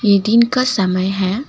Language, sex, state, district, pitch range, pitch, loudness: Hindi, female, Assam, Kamrup Metropolitan, 190-235 Hz, 205 Hz, -15 LUFS